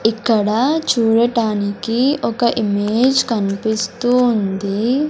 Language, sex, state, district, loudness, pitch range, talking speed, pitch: Telugu, male, Andhra Pradesh, Sri Satya Sai, -17 LUFS, 210-245 Hz, 70 wpm, 230 Hz